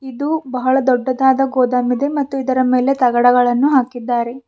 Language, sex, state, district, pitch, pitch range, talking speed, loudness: Kannada, female, Karnataka, Bidar, 255 Hz, 250-270 Hz, 120 wpm, -16 LUFS